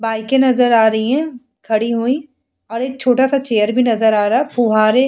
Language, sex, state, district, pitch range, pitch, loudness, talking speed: Hindi, female, Bihar, Vaishali, 220-265 Hz, 245 Hz, -15 LUFS, 210 wpm